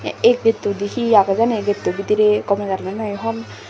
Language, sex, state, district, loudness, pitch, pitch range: Chakma, female, Tripura, Dhalai, -18 LUFS, 205 Hz, 200-225 Hz